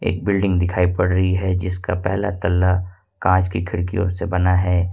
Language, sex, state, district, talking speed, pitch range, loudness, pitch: Hindi, male, Jharkhand, Ranchi, 185 wpm, 90-95 Hz, -20 LUFS, 90 Hz